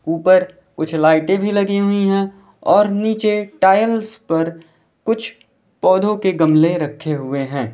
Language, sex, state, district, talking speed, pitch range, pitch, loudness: Hindi, male, Uttar Pradesh, Lalitpur, 140 wpm, 160-205 Hz, 190 Hz, -17 LUFS